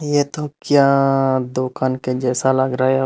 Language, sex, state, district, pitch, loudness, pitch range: Hindi, male, Tripura, Unakoti, 130 Hz, -18 LUFS, 130-140 Hz